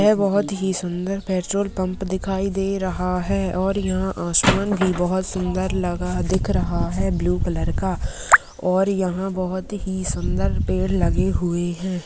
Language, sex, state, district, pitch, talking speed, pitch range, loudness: Hindi, female, Rajasthan, Churu, 185 Hz, 160 wpm, 175-195 Hz, -22 LUFS